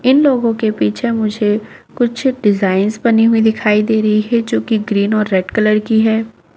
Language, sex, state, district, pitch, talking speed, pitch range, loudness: Hindi, female, Chhattisgarh, Bastar, 220 Hz, 190 wpm, 210-230 Hz, -14 LUFS